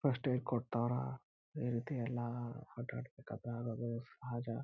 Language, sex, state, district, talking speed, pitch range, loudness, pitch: Kannada, male, Karnataka, Chamarajanagar, 140 wpm, 120-130 Hz, -41 LUFS, 120 Hz